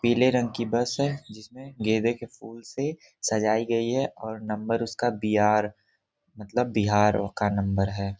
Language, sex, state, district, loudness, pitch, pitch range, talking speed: Hindi, male, Bihar, Gopalganj, -26 LUFS, 115 Hz, 105-120 Hz, 185 wpm